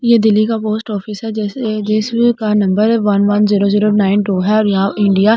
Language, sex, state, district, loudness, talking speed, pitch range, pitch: Hindi, female, Delhi, New Delhi, -14 LUFS, 225 wpm, 205-220 Hz, 210 Hz